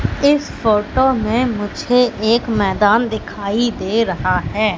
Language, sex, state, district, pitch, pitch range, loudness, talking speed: Hindi, female, Madhya Pradesh, Katni, 220 Hz, 205-240 Hz, -17 LUFS, 125 wpm